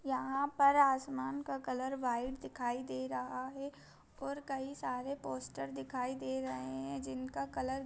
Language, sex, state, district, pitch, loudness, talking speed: Hindi, female, Chhattisgarh, Raigarh, 250 Hz, -37 LUFS, 160 wpm